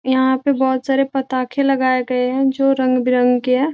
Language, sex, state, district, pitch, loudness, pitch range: Hindi, female, Bihar, Gopalganj, 260 Hz, -17 LUFS, 255-270 Hz